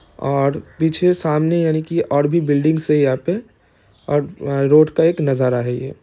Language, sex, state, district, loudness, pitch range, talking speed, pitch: Hindi, male, Bihar, East Champaran, -17 LUFS, 140-160 Hz, 180 wpm, 150 Hz